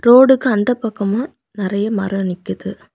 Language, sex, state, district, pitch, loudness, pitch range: Tamil, female, Tamil Nadu, Kanyakumari, 215 Hz, -17 LUFS, 195-245 Hz